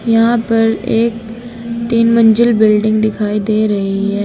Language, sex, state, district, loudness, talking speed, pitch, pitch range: Hindi, female, Uttar Pradesh, Saharanpur, -13 LUFS, 140 wpm, 225 Hz, 215-230 Hz